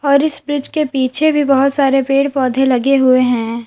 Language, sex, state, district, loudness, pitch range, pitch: Hindi, female, Uttar Pradesh, Lalitpur, -14 LUFS, 255-285 Hz, 270 Hz